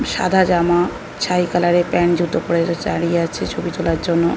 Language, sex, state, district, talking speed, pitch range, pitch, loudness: Bengali, female, West Bengal, North 24 Parganas, 180 wpm, 170-175 Hz, 175 Hz, -18 LUFS